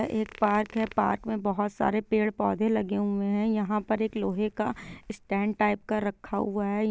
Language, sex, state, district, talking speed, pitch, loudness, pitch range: Hindi, female, Bihar, Gopalganj, 215 wpm, 215 Hz, -28 LUFS, 205-220 Hz